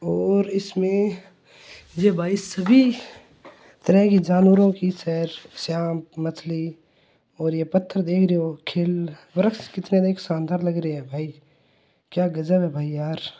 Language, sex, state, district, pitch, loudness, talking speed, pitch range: Hindi, male, Rajasthan, Churu, 175 Hz, -22 LUFS, 150 wpm, 160-190 Hz